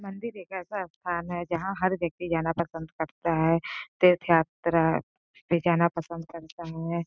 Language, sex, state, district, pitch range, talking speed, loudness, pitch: Hindi, female, Uttar Pradesh, Gorakhpur, 165-180 Hz, 160 wpm, -27 LUFS, 170 Hz